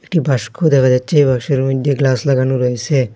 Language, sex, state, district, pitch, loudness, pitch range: Bengali, male, Assam, Hailakandi, 135 Hz, -15 LUFS, 130-140 Hz